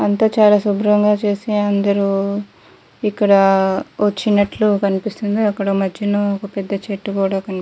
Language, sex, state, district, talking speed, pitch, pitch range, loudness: Telugu, female, Andhra Pradesh, Guntur, 125 wpm, 205 Hz, 195-210 Hz, -17 LUFS